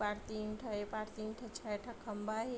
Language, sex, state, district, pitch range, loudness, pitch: Chhattisgarhi, female, Chhattisgarh, Bilaspur, 210-220 Hz, -42 LUFS, 215 Hz